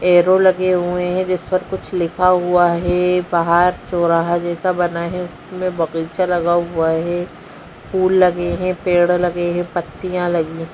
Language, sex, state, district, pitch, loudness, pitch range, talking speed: Bhojpuri, female, Uttar Pradesh, Gorakhpur, 175 Hz, -17 LUFS, 175-180 Hz, 160 wpm